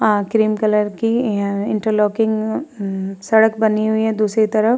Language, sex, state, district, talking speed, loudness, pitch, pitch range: Hindi, female, Uttar Pradesh, Muzaffarnagar, 165 wpm, -18 LUFS, 215 Hz, 210-220 Hz